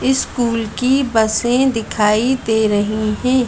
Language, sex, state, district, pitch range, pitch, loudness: Hindi, female, Madhya Pradesh, Bhopal, 215-255 Hz, 230 Hz, -16 LUFS